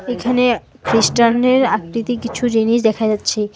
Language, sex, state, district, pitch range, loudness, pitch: Bengali, female, West Bengal, Alipurduar, 220-245 Hz, -16 LUFS, 235 Hz